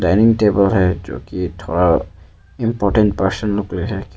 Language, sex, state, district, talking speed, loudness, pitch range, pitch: Hindi, male, Arunachal Pradesh, Papum Pare, 160 wpm, -17 LUFS, 85-105 Hz, 95 Hz